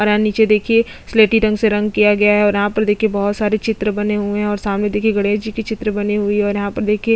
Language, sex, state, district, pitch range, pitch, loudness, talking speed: Hindi, female, Chhattisgarh, Bastar, 205-215 Hz, 210 Hz, -16 LUFS, 295 wpm